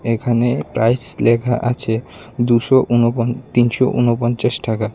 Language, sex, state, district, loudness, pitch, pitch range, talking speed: Bengali, male, Tripura, West Tripura, -17 LUFS, 120 Hz, 115-120 Hz, 95 wpm